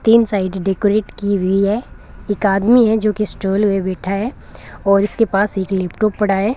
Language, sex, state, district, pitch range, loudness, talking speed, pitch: Hindi, female, Rajasthan, Bikaner, 195-215 Hz, -17 LUFS, 200 wpm, 200 Hz